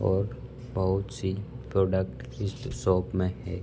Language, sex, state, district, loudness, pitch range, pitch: Hindi, male, Uttar Pradesh, Budaun, -30 LUFS, 95-120 Hz, 95 Hz